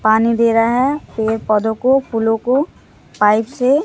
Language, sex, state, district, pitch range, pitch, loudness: Hindi, female, Bihar, Katihar, 220-255 Hz, 225 Hz, -16 LUFS